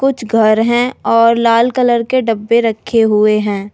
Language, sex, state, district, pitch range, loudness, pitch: Hindi, female, Delhi, New Delhi, 220-240 Hz, -12 LUFS, 230 Hz